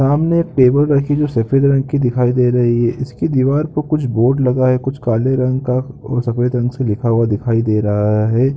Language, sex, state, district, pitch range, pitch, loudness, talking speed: Hindi, male, Chhattisgarh, Rajnandgaon, 120-135 Hz, 125 Hz, -15 LUFS, 230 wpm